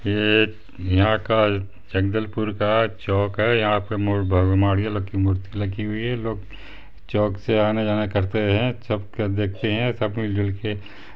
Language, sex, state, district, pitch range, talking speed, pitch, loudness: Hindi, male, Chhattisgarh, Bastar, 100-110 Hz, 165 wpm, 105 Hz, -22 LUFS